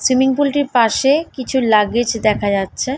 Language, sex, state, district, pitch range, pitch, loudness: Bengali, female, West Bengal, Dakshin Dinajpur, 220-270 Hz, 255 Hz, -16 LUFS